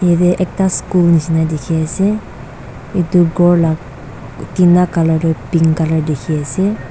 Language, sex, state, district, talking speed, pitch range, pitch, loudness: Nagamese, female, Nagaland, Dimapur, 140 wpm, 150-175 Hz, 165 Hz, -14 LUFS